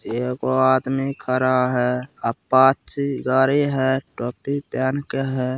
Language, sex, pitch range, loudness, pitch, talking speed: Bhojpuri, male, 125-135 Hz, -21 LUFS, 130 Hz, 120 wpm